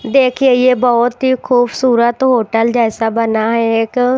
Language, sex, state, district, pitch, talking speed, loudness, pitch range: Hindi, female, Maharashtra, Washim, 245 Hz, 145 wpm, -13 LUFS, 230-255 Hz